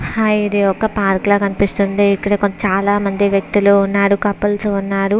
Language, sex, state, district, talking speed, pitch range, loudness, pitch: Telugu, female, Andhra Pradesh, Visakhapatnam, 150 wpm, 195-205 Hz, -15 LUFS, 200 Hz